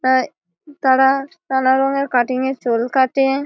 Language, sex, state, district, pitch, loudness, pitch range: Bengali, female, West Bengal, Malda, 265 Hz, -17 LUFS, 255-275 Hz